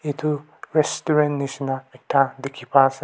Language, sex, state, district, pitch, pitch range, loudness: Nagamese, male, Nagaland, Kohima, 140 Hz, 135-150 Hz, -22 LUFS